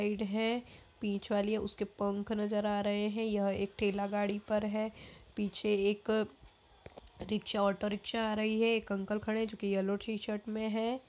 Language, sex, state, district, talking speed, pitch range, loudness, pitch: Hindi, female, Bihar, Saharsa, 195 wpm, 205-220 Hz, -34 LUFS, 210 Hz